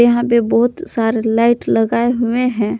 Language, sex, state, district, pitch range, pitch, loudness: Hindi, male, Jharkhand, Palamu, 225-240 Hz, 235 Hz, -15 LUFS